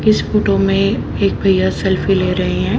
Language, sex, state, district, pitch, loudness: Hindi, female, Haryana, Jhajjar, 195 Hz, -15 LUFS